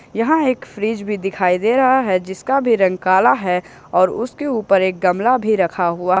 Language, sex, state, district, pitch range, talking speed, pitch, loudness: Hindi, male, Jharkhand, Ranchi, 185-245 Hz, 205 wpm, 200 Hz, -17 LUFS